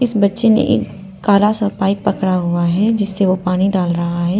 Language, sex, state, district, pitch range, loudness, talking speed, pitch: Hindi, female, Arunachal Pradesh, Papum Pare, 185-205 Hz, -16 LUFS, 215 wpm, 195 Hz